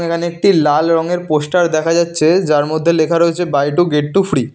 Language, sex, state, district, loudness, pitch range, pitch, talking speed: Bengali, male, Karnataka, Bangalore, -14 LUFS, 150-170 Hz, 165 Hz, 225 wpm